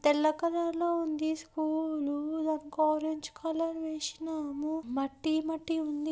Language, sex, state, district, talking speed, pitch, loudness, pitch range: Telugu, female, Andhra Pradesh, Anantapur, 120 wpm, 315 Hz, -32 LUFS, 305-320 Hz